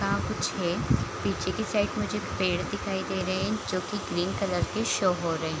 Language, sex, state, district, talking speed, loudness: Hindi, female, Bihar, Kishanganj, 225 wpm, -28 LUFS